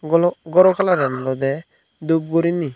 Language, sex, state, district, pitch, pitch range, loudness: Chakma, male, Tripura, Unakoti, 165 Hz, 140-175 Hz, -18 LUFS